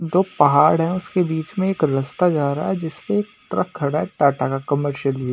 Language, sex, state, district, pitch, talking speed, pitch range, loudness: Hindi, male, Maharashtra, Washim, 160 Hz, 245 wpm, 140-185 Hz, -20 LUFS